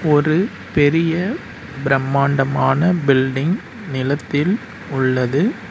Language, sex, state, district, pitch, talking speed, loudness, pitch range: Tamil, male, Tamil Nadu, Nilgiris, 145 Hz, 65 wpm, -18 LUFS, 135-175 Hz